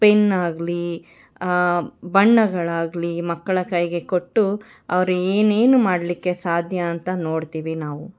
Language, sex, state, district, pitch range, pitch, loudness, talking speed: Kannada, female, Karnataka, Bangalore, 170-195 Hz, 180 Hz, -21 LUFS, 90 wpm